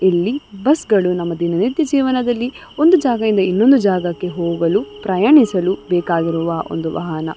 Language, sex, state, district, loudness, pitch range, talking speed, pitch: Kannada, female, Karnataka, Dakshina Kannada, -16 LUFS, 170-250 Hz, 115 wpm, 190 Hz